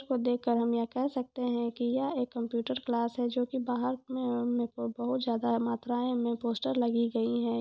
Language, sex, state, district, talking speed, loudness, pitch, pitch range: Hindi, female, Jharkhand, Sahebganj, 190 wpm, -31 LUFS, 240 Hz, 235-250 Hz